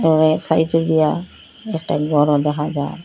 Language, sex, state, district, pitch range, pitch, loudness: Bengali, female, Assam, Hailakandi, 150-165 Hz, 155 Hz, -18 LUFS